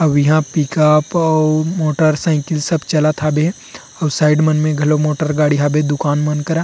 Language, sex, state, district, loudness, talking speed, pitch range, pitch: Chhattisgarhi, male, Chhattisgarh, Rajnandgaon, -15 LUFS, 180 wpm, 150-155 Hz, 155 Hz